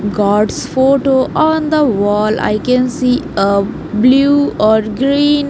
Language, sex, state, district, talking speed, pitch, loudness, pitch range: English, female, Haryana, Jhajjar, 130 wpm, 250 Hz, -13 LUFS, 210-280 Hz